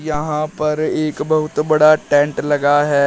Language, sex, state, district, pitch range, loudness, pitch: Hindi, male, Uttar Pradesh, Shamli, 145-155 Hz, -16 LUFS, 150 Hz